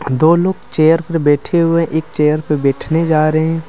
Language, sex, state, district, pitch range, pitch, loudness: Hindi, male, Jharkhand, Deoghar, 150-165 Hz, 160 Hz, -14 LUFS